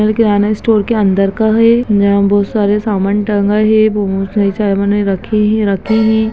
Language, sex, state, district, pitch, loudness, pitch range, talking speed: Hindi, female, Bihar, Gaya, 210 Hz, -12 LUFS, 200-220 Hz, 190 wpm